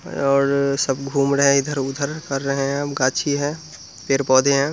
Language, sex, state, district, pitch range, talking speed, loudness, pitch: Hindi, male, Bihar, Muzaffarpur, 135-140 Hz, 205 wpm, -20 LUFS, 140 Hz